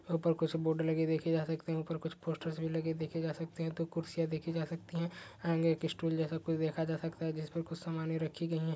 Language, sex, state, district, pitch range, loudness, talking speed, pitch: Hindi, male, Maharashtra, Solapur, 160-165 Hz, -36 LUFS, 260 wpm, 160 Hz